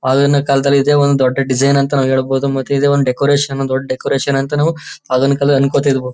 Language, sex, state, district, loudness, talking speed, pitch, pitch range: Kannada, male, Karnataka, Chamarajanagar, -14 LUFS, 195 wpm, 140 Hz, 135-140 Hz